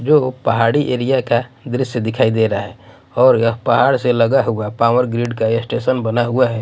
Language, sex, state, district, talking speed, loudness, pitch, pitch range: Hindi, male, Odisha, Nuapada, 210 wpm, -16 LUFS, 120 Hz, 115-125 Hz